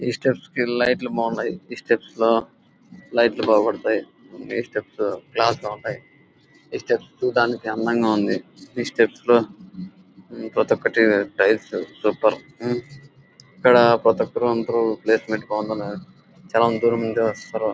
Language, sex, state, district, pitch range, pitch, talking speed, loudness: Telugu, male, Andhra Pradesh, Anantapur, 110-120 Hz, 115 Hz, 115 wpm, -21 LUFS